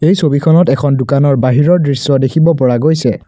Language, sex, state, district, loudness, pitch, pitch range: Assamese, male, Assam, Kamrup Metropolitan, -11 LUFS, 140 Hz, 130-160 Hz